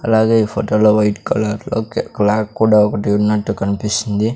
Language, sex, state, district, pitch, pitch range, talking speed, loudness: Telugu, male, Andhra Pradesh, Sri Satya Sai, 105 Hz, 105-110 Hz, 135 wpm, -16 LUFS